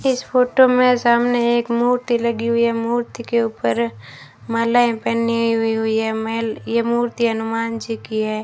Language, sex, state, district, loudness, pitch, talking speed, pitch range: Hindi, female, Rajasthan, Jaisalmer, -19 LUFS, 230 Hz, 170 wpm, 225-240 Hz